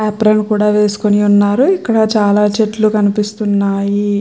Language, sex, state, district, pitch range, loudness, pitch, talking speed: Telugu, female, Andhra Pradesh, Chittoor, 205-215 Hz, -13 LUFS, 210 Hz, 115 wpm